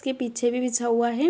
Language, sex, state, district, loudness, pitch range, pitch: Hindi, female, Bihar, Muzaffarpur, -24 LUFS, 235-255 Hz, 245 Hz